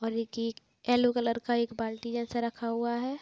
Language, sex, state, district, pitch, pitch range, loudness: Hindi, female, Bihar, Gopalganj, 235 Hz, 230-240 Hz, -31 LUFS